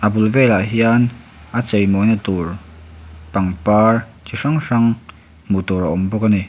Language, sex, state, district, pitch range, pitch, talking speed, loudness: Mizo, male, Mizoram, Aizawl, 90-115 Hz, 105 Hz, 165 wpm, -17 LUFS